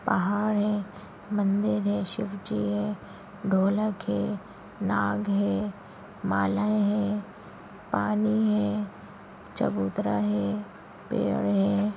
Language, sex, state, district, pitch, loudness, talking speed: Hindi, female, Uttarakhand, Tehri Garhwal, 105 Hz, -27 LUFS, 95 wpm